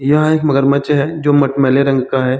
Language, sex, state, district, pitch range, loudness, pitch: Hindi, male, Bihar, Saran, 135-145 Hz, -13 LUFS, 140 Hz